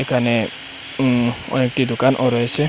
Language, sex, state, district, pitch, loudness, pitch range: Bengali, male, Assam, Hailakandi, 125 Hz, -18 LUFS, 120-130 Hz